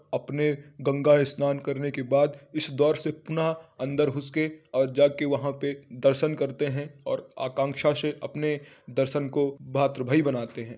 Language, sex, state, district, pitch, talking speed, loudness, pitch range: Hindi, male, Uttar Pradesh, Varanasi, 145 Hz, 155 wpm, -27 LUFS, 140-150 Hz